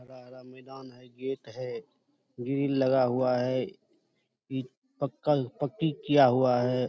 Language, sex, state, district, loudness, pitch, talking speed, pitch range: Hindi, male, Bihar, Saharsa, -28 LUFS, 130 Hz, 130 wpm, 125-140 Hz